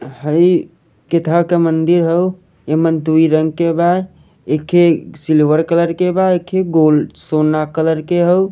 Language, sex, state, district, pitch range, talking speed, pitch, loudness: Bhojpuri, male, Jharkhand, Sahebganj, 155-175 Hz, 155 wpm, 165 Hz, -14 LUFS